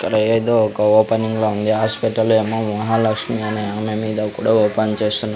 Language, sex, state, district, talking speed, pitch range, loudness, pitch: Telugu, male, Andhra Pradesh, Sri Satya Sai, 165 wpm, 105-110 Hz, -18 LUFS, 110 Hz